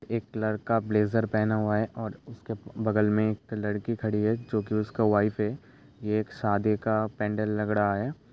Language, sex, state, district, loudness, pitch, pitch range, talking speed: Hindi, male, Uttar Pradesh, Hamirpur, -28 LUFS, 110 Hz, 105-115 Hz, 195 wpm